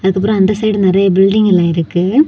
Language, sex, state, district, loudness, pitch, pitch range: Tamil, female, Tamil Nadu, Kanyakumari, -12 LUFS, 195 Hz, 185-210 Hz